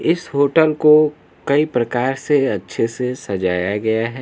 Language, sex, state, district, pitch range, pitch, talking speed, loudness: Hindi, male, Bihar, Kaimur, 115-150 Hz, 130 Hz, 155 wpm, -17 LUFS